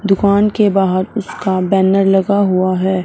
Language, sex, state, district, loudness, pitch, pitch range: Hindi, female, Punjab, Fazilka, -14 LUFS, 195 Hz, 185-200 Hz